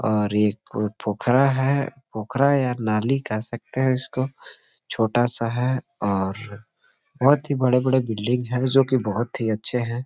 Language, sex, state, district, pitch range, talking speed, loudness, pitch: Hindi, male, Jharkhand, Sahebganj, 110-130 Hz, 160 wpm, -22 LUFS, 125 Hz